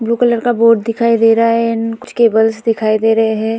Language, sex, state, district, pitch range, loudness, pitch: Hindi, female, Uttar Pradesh, Budaun, 225-230 Hz, -13 LUFS, 230 Hz